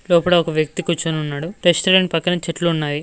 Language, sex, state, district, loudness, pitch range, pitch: Telugu, male, Telangana, Mahabubabad, -18 LUFS, 155-180 Hz, 170 Hz